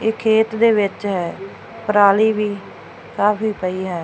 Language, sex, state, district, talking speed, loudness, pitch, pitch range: Punjabi, female, Punjab, Fazilka, 150 wpm, -18 LUFS, 210 Hz, 195-220 Hz